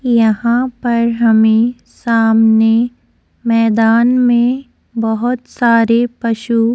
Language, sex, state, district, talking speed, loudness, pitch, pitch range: Hindi, female, Chhattisgarh, Sukma, 90 wpm, -13 LUFS, 230 Hz, 225-240 Hz